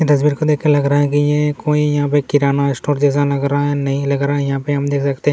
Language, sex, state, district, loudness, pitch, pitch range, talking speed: Hindi, male, Chhattisgarh, Kabirdham, -16 LUFS, 145 Hz, 140-145 Hz, 325 wpm